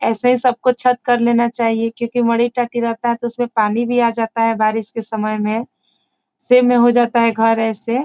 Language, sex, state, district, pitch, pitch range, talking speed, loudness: Hindi, female, Bihar, Gopalganj, 235 Hz, 225-245 Hz, 210 wpm, -16 LUFS